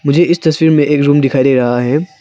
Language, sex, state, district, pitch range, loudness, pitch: Hindi, male, Arunachal Pradesh, Papum Pare, 135-160 Hz, -11 LUFS, 145 Hz